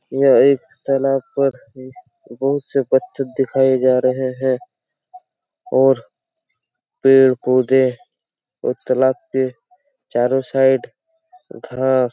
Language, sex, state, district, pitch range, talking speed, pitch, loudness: Hindi, male, Chhattisgarh, Raigarh, 130-180 Hz, 105 wpm, 135 Hz, -17 LUFS